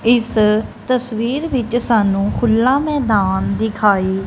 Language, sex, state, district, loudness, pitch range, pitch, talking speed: Punjabi, female, Punjab, Kapurthala, -16 LUFS, 200-245 Hz, 225 Hz, 100 wpm